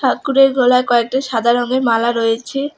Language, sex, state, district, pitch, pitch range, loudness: Bengali, female, West Bengal, Alipurduar, 250 Hz, 235-265 Hz, -15 LUFS